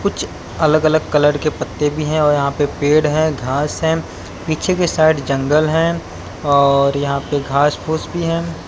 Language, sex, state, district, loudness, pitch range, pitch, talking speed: Hindi, male, Haryana, Jhajjar, -16 LUFS, 140-160 Hz, 150 Hz, 195 wpm